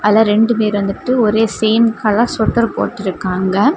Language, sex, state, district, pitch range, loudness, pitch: Tamil, female, Tamil Nadu, Kanyakumari, 205-230 Hz, -15 LUFS, 220 Hz